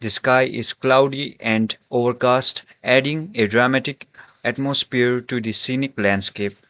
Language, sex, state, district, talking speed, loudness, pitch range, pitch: English, male, Sikkim, Gangtok, 125 wpm, -18 LUFS, 110-130 Hz, 125 Hz